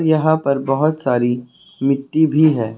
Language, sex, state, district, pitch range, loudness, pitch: Hindi, male, Uttar Pradesh, Lucknow, 130-155 Hz, -17 LUFS, 140 Hz